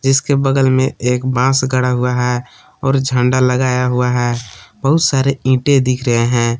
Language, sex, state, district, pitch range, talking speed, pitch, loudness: Hindi, male, Jharkhand, Palamu, 125-135 Hz, 175 wpm, 130 Hz, -15 LUFS